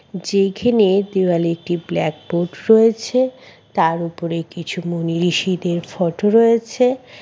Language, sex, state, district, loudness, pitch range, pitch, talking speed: Bengali, female, West Bengal, Kolkata, -18 LUFS, 170-220 Hz, 185 Hz, 100 wpm